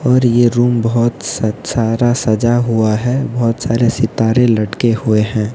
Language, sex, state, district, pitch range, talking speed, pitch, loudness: Hindi, male, Odisha, Nuapada, 110-120 Hz, 160 wpm, 115 Hz, -14 LUFS